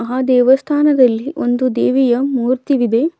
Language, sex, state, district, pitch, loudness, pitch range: Kannada, female, Karnataka, Bidar, 255 Hz, -14 LUFS, 245-275 Hz